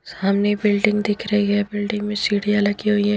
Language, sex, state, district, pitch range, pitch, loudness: Hindi, female, Bihar, Patna, 205-210 Hz, 205 Hz, -20 LUFS